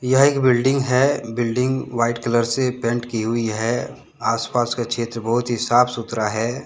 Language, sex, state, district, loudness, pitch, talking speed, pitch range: Hindi, male, Jharkhand, Deoghar, -20 LUFS, 120 Hz, 190 wpm, 115-125 Hz